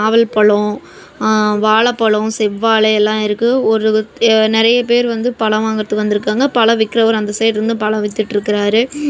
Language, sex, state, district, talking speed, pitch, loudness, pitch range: Tamil, female, Tamil Nadu, Namakkal, 140 wpm, 220 Hz, -14 LUFS, 215-230 Hz